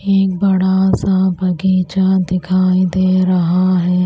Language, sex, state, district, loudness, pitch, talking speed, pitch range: Hindi, female, Maharashtra, Washim, -14 LUFS, 185 Hz, 120 wpm, 185-190 Hz